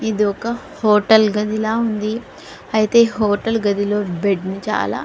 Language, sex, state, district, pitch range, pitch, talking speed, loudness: Telugu, female, Andhra Pradesh, Guntur, 205-225 Hz, 215 Hz, 155 wpm, -18 LUFS